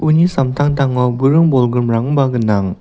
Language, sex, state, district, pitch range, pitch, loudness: Garo, male, Meghalaya, West Garo Hills, 120-145 Hz, 130 Hz, -14 LUFS